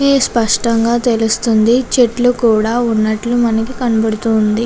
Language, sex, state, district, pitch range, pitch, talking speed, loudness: Telugu, female, Andhra Pradesh, Chittoor, 220-240 Hz, 230 Hz, 115 wpm, -14 LUFS